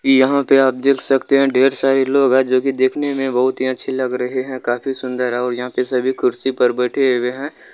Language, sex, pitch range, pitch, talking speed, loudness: Maithili, male, 125-135 Hz, 130 Hz, 240 wpm, -17 LUFS